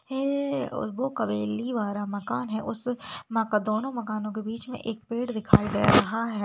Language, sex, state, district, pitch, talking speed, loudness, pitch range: Hindi, female, Bihar, Begusarai, 225 Hz, 195 wpm, -27 LUFS, 215-245 Hz